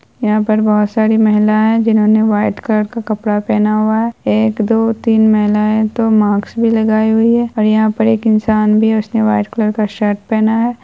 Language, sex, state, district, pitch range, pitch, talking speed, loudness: Hindi, female, Bihar, Saharsa, 215-225 Hz, 215 Hz, 205 wpm, -13 LUFS